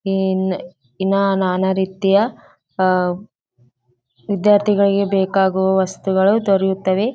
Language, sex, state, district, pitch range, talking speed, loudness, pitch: Kannada, female, Karnataka, Gulbarga, 185-200 Hz, 85 wpm, -17 LUFS, 190 Hz